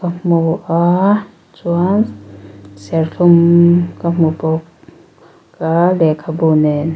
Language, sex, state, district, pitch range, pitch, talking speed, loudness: Mizo, female, Mizoram, Aizawl, 160-175 Hz, 165 Hz, 85 wpm, -14 LUFS